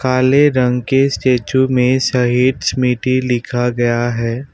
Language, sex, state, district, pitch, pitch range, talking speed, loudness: Hindi, male, Assam, Kamrup Metropolitan, 125 Hz, 120-130 Hz, 130 wpm, -15 LUFS